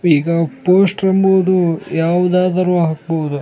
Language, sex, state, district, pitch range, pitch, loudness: Kannada, male, Karnataka, Bellary, 165-185 Hz, 175 Hz, -15 LUFS